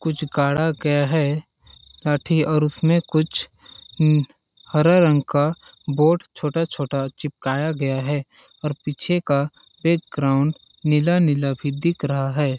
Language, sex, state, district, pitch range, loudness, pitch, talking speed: Hindi, male, Chhattisgarh, Balrampur, 140-160 Hz, -21 LUFS, 150 Hz, 125 wpm